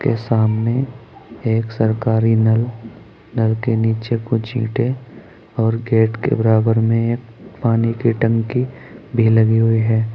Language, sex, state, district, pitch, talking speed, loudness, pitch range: Hindi, male, Uttar Pradesh, Saharanpur, 115 Hz, 125 wpm, -18 LUFS, 110-115 Hz